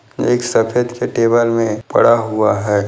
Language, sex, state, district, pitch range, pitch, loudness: Hindi, male, Bihar, Jahanabad, 110-120 Hz, 115 Hz, -15 LUFS